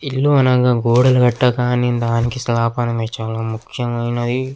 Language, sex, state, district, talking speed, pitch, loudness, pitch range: Telugu, male, Andhra Pradesh, Krishna, 130 wpm, 120 Hz, -17 LUFS, 115-125 Hz